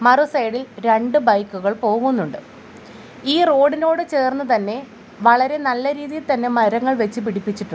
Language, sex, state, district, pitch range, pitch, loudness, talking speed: Malayalam, female, Kerala, Kollam, 220-280 Hz, 245 Hz, -18 LUFS, 125 wpm